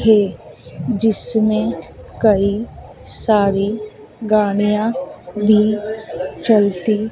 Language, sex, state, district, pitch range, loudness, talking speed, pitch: Hindi, female, Madhya Pradesh, Dhar, 205-220 Hz, -17 LUFS, 60 wpm, 215 Hz